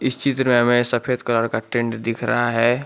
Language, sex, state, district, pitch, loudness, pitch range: Hindi, male, Uttar Pradesh, Lucknow, 120 Hz, -20 LUFS, 115-125 Hz